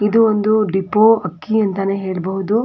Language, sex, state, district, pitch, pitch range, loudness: Kannada, female, Karnataka, Dakshina Kannada, 210 Hz, 190-220 Hz, -16 LUFS